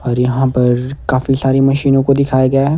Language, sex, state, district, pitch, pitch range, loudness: Hindi, male, Himachal Pradesh, Shimla, 135 Hz, 130-135 Hz, -14 LUFS